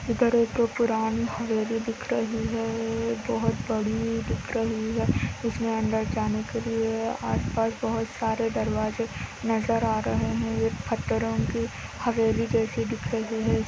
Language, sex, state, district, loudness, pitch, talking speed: Hindi, female, Andhra Pradesh, Anantapur, -27 LUFS, 220 Hz, 180 wpm